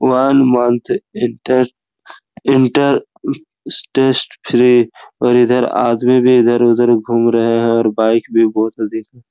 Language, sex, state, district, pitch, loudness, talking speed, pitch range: Hindi, male, Chhattisgarh, Raigarh, 120 Hz, -14 LUFS, 125 wpm, 115-125 Hz